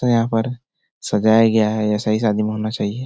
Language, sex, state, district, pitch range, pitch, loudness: Hindi, male, Bihar, Supaul, 105-115 Hz, 110 Hz, -18 LUFS